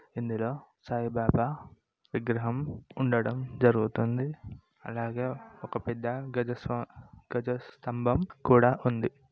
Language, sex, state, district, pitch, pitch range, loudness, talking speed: Telugu, male, Telangana, Nalgonda, 120 Hz, 115-130 Hz, -30 LUFS, 90 wpm